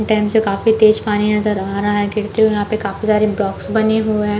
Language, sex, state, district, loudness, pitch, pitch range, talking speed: Hindi, female, Chhattisgarh, Balrampur, -16 LUFS, 210 Hz, 205-215 Hz, 260 wpm